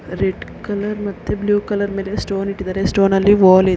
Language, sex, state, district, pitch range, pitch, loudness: Kannada, female, Karnataka, Gulbarga, 190-205 Hz, 195 Hz, -18 LUFS